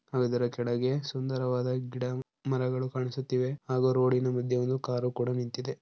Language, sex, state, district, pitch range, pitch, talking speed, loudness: Kannada, male, Karnataka, Dharwad, 125-130 Hz, 125 Hz, 135 wpm, -30 LUFS